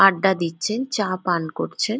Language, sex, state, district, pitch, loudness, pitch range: Bengali, female, West Bengal, Jalpaiguri, 195 Hz, -22 LUFS, 175-215 Hz